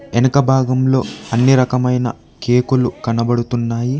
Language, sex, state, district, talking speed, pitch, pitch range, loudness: Telugu, male, Telangana, Hyderabad, 90 wpm, 125 Hz, 120-130 Hz, -16 LUFS